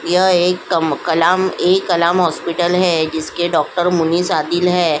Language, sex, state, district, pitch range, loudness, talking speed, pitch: Hindi, female, Uttar Pradesh, Jyotiba Phule Nagar, 165-180 Hz, -15 LUFS, 155 wpm, 175 Hz